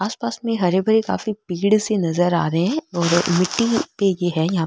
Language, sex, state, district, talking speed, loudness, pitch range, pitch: Marwari, female, Rajasthan, Nagaur, 230 wpm, -20 LUFS, 175-220 Hz, 190 Hz